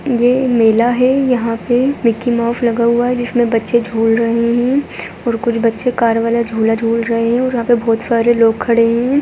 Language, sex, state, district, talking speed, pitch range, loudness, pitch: Hindi, female, Bihar, Muzaffarpur, 210 wpm, 230-245 Hz, -14 LUFS, 235 Hz